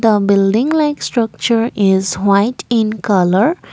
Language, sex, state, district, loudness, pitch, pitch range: English, female, Assam, Kamrup Metropolitan, -14 LUFS, 215 Hz, 200-235 Hz